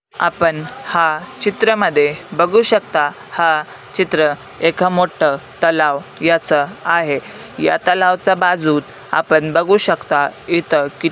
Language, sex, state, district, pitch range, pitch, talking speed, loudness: Marathi, male, Maharashtra, Sindhudurg, 155-185 Hz, 165 Hz, 115 wpm, -16 LUFS